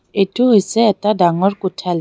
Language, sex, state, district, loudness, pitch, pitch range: Assamese, female, Assam, Kamrup Metropolitan, -15 LUFS, 195 Hz, 185-215 Hz